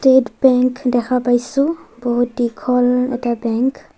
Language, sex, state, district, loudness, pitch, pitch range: Assamese, female, Assam, Sonitpur, -17 LUFS, 250 Hz, 240-260 Hz